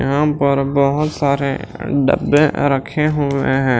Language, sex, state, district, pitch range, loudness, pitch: Hindi, male, Maharashtra, Washim, 135-150 Hz, -16 LUFS, 140 Hz